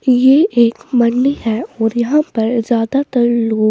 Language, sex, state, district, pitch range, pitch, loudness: Hindi, female, Bihar, West Champaran, 225-260 Hz, 240 Hz, -14 LUFS